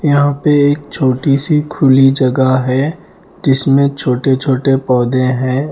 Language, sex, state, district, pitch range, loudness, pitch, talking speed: Hindi, male, Punjab, Fazilka, 130-145 Hz, -13 LUFS, 135 Hz, 115 wpm